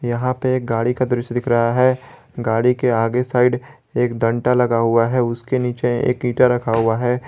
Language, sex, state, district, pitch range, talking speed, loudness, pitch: Hindi, male, Jharkhand, Garhwa, 115-125 Hz, 205 wpm, -18 LUFS, 125 Hz